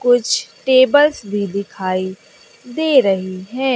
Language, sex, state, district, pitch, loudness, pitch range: Hindi, female, Bihar, West Champaran, 235 Hz, -16 LUFS, 190-265 Hz